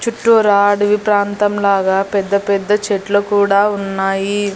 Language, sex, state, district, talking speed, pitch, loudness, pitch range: Telugu, female, Andhra Pradesh, Annamaya, 120 wpm, 200 Hz, -14 LUFS, 200-205 Hz